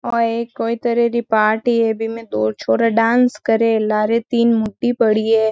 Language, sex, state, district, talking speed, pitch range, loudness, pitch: Marwari, female, Rajasthan, Nagaur, 185 wpm, 220-235 Hz, -17 LUFS, 230 Hz